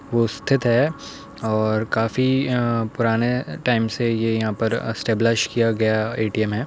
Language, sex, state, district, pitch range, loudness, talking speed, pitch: Hindi, male, Uttar Pradesh, Hamirpur, 110-120 Hz, -21 LUFS, 160 wpm, 115 Hz